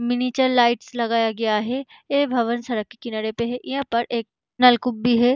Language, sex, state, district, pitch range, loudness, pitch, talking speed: Hindi, female, Bihar, Samastipur, 230-250 Hz, -21 LUFS, 240 Hz, 200 wpm